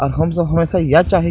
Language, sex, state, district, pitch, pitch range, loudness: Maithili, male, Bihar, Purnia, 165 Hz, 160-175 Hz, -15 LUFS